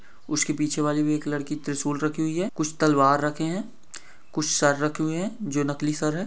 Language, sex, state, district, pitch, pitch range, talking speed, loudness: Hindi, male, Maharashtra, Chandrapur, 150 Hz, 150-160 Hz, 220 wpm, -25 LUFS